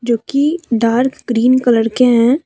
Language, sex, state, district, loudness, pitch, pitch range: Hindi, female, Jharkhand, Deoghar, -14 LUFS, 245 Hz, 230-260 Hz